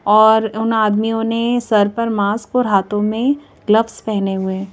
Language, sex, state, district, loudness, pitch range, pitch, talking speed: Hindi, female, Madhya Pradesh, Bhopal, -16 LUFS, 205-225 Hz, 220 Hz, 180 wpm